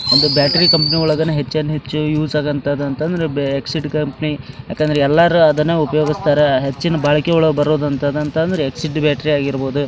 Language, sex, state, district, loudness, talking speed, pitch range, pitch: Kannada, male, Karnataka, Dharwad, -16 LUFS, 150 wpm, 145-155 Hz, 150 Hz